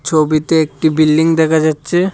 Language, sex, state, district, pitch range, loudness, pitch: Bengali, male, Tripura, Dhalai, 155-160 Hz, -13 LUFS, 155 Hz